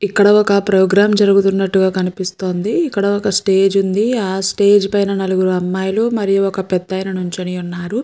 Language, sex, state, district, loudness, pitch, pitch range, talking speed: Telugu, female, Andhra Pradesh, Chittoor, -15 LUFS, 195 Hz, 190-205 Hz, 140 wpm